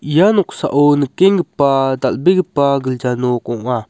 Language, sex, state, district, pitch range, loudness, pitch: Garo, male, Meghalaya, West Garo Hills, 125-175 Hz, -15 LUFS, 140 Hz